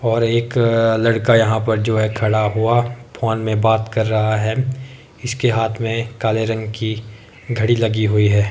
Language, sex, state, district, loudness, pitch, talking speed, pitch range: Hindi, male, Himachal Pradesh, Shimla, -18 LUFS, 115 Hz, 175 wpm, 110-115 Hz